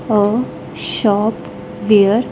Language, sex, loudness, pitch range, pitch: English, female, -16 LUFS, 205-225 Hz, 215 Hz